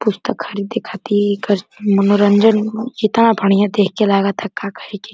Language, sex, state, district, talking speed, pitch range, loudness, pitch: Bhojpuri, male, Uttar Pradesh, Deoria, 150 wpm, 200-220 Hz, -16 LUFS, 205 Hz